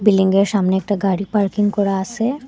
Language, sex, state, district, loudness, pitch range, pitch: Bengali, female, Assam, Hailakandi, -18 LUFS, 195-205 Hz, 200 Hz